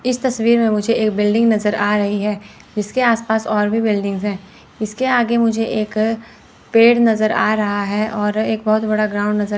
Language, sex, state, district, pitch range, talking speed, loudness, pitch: Hindi, female, Chandigarh, Chandigarh, 210-230 Hz, 200 wpm, -17 LUFS, 215 Hz